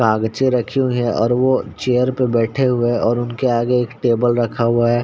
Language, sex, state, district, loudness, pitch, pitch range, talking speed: Hindi, male, Uttar Pradesh, Ghazipur, -17 LUFS, 120 Hz, 115-125 Hz, 225 wpm